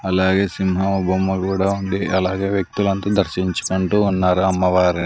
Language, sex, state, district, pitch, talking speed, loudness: Telugu, male, Andhra Pradesh, Sri Satya Sai, 95 Hz, 140 wpm, -19 LUFS